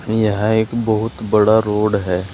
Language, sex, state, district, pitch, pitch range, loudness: Hindi, male, Uttar Pradesh, Saharanpur, 110 Hz, 105-110 Hz, -17 LUFS